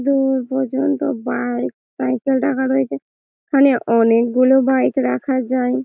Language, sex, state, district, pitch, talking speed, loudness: Bengali, female, West Bengal, Malda, 250 Hz, 135 wpm, -18 LUFS